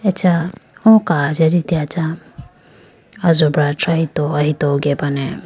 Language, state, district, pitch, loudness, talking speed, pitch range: Idu Mishmi, Arunachal Pradesh, Lower Dibang Valley, 160 Hz, -15 LUFS, 90 wpm, 150-175 Hz